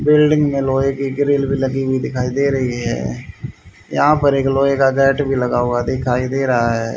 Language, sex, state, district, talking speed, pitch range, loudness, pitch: Hindi, male, Haryana, Jhajjar, 215 wpm, 125-140 Hz, -17 LUFS, 135 Hz